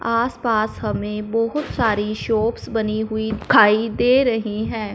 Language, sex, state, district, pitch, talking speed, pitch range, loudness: Hindi, male, Punjab, Fazilka, 220 Hz, 135 wpm, 215-230 Hz, -20 LUFS